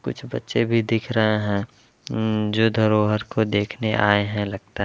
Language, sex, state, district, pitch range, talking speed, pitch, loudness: Hindi, male, Uttar Pradesh, Varanasi, 105-110 Hz, 185 wpm, 105 Hz, -22 LUFS